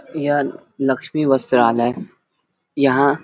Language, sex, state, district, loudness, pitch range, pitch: Hindi, male, Uttar Pradesh, Varanasi, -18 LUFS, 125-145 Hz, 140 Hz